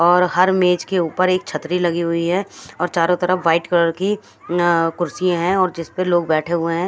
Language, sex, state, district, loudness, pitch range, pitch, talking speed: Hindi, female, Bihar, West Champaran, -18 LUFS, 170-185 Hz, 175 Hz, 220 wpm